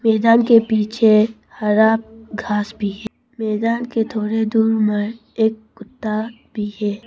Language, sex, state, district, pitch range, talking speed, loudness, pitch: Hindi, female, Arunachal Pradesh, Papum Pare, 215-225 Hz, 135 wpm, -18 LUFS, 220 Hz